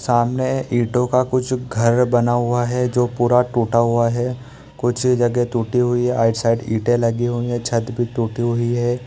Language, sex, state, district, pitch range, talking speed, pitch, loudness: Hindi, male, Bihar, East Champaran, 120-125 Hz, 185 wpm, 120 Hz, -19 LUFS